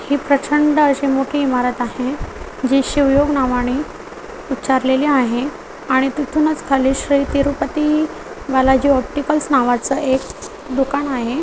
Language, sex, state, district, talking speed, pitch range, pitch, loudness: Marathi, female, Maharashtra, Chandrapur, 115 wpm, 260-290 Hz, 275 Hz, -17 LUFS